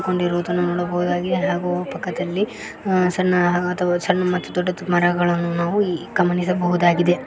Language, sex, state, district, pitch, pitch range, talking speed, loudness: Kannada, female, Karnataka, Koppal, 180 Hz, 175-180 Hz, 115 wpm, -20 LUFS